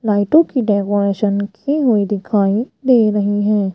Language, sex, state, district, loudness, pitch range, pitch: Hindi, female, Rajasthan, Jaipur, -16 LUFS, 205-240 Hz, 205 Hz